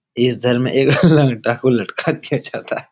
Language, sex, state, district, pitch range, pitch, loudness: Hindi, male, Bihar, Supaul, 120-135 Hz, 125 Hz, -16 LUFS